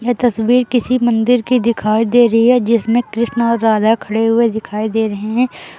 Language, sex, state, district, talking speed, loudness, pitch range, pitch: Hindi, female, Uttar Pradesh, Lucknow, 195 wpm, -14 LUFS, 220-245 Hz, 230 Hz